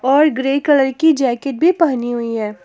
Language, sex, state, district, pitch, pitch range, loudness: Hindi, female, Jharkhand, Garhwa, 270 Hz, 240-300 Hz, -16 LUFS